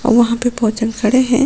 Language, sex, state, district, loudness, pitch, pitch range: Hindi, female, Goa, North and South Goa, -15 LUFS, 235 Hz, 225-245 Hz